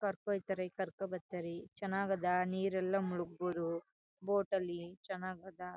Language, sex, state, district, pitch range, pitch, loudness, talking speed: Kannada, female, Karnataka, Chamarajanagar, 180-195 Hz, 185 Hz, -39 LUFS, 145 wpm